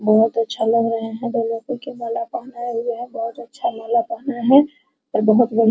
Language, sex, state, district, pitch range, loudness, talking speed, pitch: Hindi, female, Bihar, Araria, 230-265 Hz, -20 LUFS, 220 wpm, 235 Hz